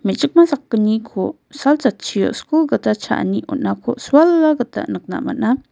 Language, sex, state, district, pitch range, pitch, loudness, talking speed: Garo, female, Meghalaya, West Garo Hills, 215-295 Hz, 275 Hz, -17 LUFS, 125 wpm